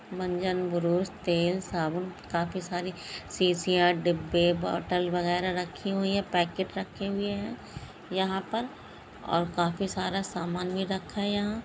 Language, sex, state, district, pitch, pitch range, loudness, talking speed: Hindi, female, Bihar, Jamui, 185 Hz, 175-195 Hz, -29 LUFS, 145 wpm